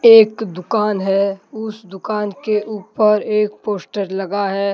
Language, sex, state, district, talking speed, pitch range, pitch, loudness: Hindi, male, Jharkhand, Deoghar, 140 wpm, 195-215 Hz, 210 Hz, -18 LUFS